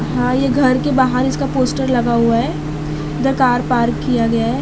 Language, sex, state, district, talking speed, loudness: Hindi, female, Maharashtra, Mumbai Suburban, 205 wpm, -16 LUFS